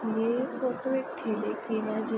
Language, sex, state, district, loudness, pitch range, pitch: Hindi, female, Uttar Pradesh, Ghazipur, -31 LUFS, 220-255 Hz, 225 Hz